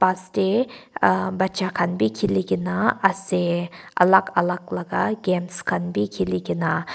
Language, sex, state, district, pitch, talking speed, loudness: Nagamese, female, Nagaland, Kohima, 180 Hz, 130 wpm, -22 LUFS